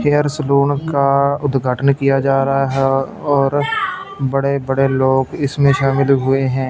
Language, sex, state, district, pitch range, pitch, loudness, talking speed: Hindi, male, Punjab, Fazilka, 135-140 Hz, 135 Hz, -16 LUFS, 145 wpm